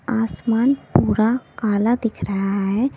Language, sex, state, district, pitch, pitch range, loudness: Hindi, female, Delhi, New Delhi, 225 Hz, 210-245 Hz, -20 LUFS